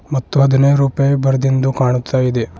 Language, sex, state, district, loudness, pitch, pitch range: Kannada, male, Karnataka, Bidar, -15 LUFS, 135 Hz, 130-140 Hz